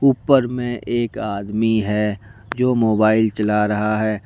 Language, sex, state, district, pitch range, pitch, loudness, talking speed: Hindi, male, Jharkhand, Deoghar, 105-120 Hz, 110 Hz, -19 LUFS, 140 wpm